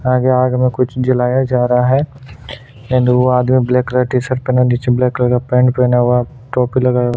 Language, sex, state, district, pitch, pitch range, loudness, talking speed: Hindi, male, Chhattisgarh, Sukma, 125 Hz, 125-130 Hz, -14 LUFS, 225 wpm